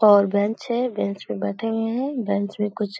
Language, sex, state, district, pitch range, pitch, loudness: Hindi, female, Bihar, Supaul, 200-225 Hz, 210 Hz, -23 LUFS